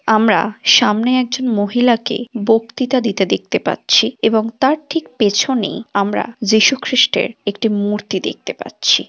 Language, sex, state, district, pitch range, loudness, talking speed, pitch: Bengali, female, West Bengal, Jhargram, 210-250 Hz, -16 LUFS, 125 wpm, 225 Hz